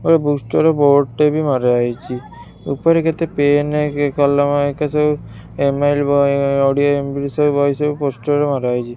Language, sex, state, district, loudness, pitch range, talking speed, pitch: Odia, female, Odisha, Khordha, -16 LUFS, 140-150 Hz, 155 wpm, 145 Hz